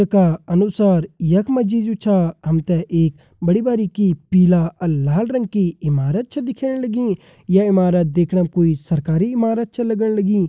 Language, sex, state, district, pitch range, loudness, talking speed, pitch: Garhwali, male, Uttarakhand, Uttarkashi, 170-220 Hz, -18 LUFS, 160 wpm, 185 Hz